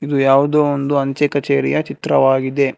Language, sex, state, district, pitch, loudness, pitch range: Kannada, male, Karnataka, Bangalore, 140 Hz, -16 LUFS, 135-145 Hz